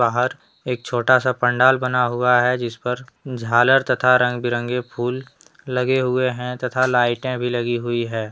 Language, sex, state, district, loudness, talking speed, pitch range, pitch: Hindi, male, Jharkhand, Deoghar, -19 LUFS, 165 wpm, 120-130 Hz, 125 Hz